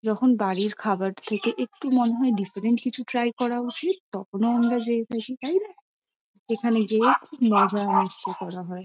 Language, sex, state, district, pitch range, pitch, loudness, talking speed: Bengali, female, West Bengal, Kolkata, 205-250 Hz, 235 Hz, -25 LUFS, 140 wpm